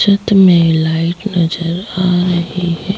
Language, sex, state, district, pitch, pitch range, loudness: Hindi, female, Chhattisgarh, Jashpur, 175 Hz, 170-190 Hz, -13 LUFS